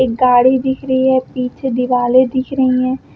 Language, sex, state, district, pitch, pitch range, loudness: Hindi, female, Uttar Pradesh, Lucknow, 255 Hz, 250-260 Hz, -14 LUFS